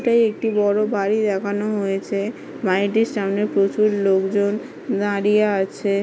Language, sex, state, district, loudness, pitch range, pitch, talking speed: Bengali, female, West Bengal, Paschim Medinipur, -20 LUFS, 200-215 Hz, 205 Hz, 130 wpm